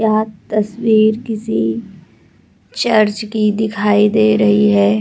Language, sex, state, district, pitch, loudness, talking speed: Hindi, female, Uttar Pradesh, Hamirpur, 210 Hz, -15 LUFS, 105 wpm